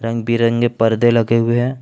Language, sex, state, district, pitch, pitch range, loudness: Hindi, male, Jharkhand, Palamu, 115 Hz, 115-120 Hz, -16 LUFS